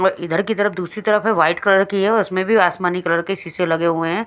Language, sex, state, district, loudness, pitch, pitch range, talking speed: Hindi, female, Haryana, Jhajjar, -18 LUFS, 185 Hz, 170-205 Hz, 295 wpm